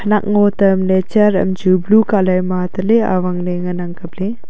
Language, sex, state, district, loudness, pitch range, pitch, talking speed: Wancho, female, Arunachal Pradesh, Longding, -15 LUFS, 180-205 Hz, 190 Hz, 175 wpm